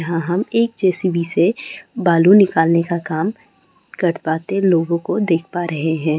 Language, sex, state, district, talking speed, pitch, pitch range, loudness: Hindi, female, Chhattisgarh, Raigarh, 155 wpm, 170 Hz, 165-195 Hz, -17 LUFS